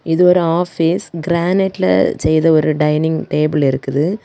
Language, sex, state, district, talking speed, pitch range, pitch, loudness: Tamil, female, Tamil Nadu, Kanyakumari, 125 wpm, 150-175 Hz, 165 Hz, -15 LUFS